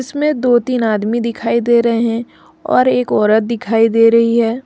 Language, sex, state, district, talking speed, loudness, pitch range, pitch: Hindi, female, Jharkhand, Deoghar, 195 wpm, -14 LUFS, 230-245 Hz, 235 Hz